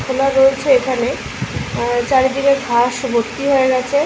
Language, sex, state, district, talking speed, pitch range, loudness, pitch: Bengali, female, West Bengal, Malda, 135 wpm, 245-275 Hz, -16 LUFS, 260 Hz